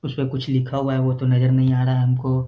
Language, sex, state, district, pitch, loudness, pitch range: Hindi, male, Bihar, Jahanabad, 130 Hz, -20 LUFS, 130-135 Hz